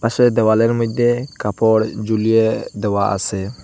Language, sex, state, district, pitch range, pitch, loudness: Bengali, male, Assam, Hailakandi, 105-115 Hz, 110 Hz, -17 LUFS